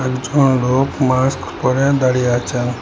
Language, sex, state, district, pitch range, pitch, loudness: Bengali, male, Assam, Hailakandi, 125-135 Hz, 130 Hz, -16 LUFS